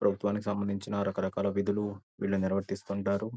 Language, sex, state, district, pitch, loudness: Telugu, male, Andhra Pradesh, Guntur, 100 Hz, -32 LUFS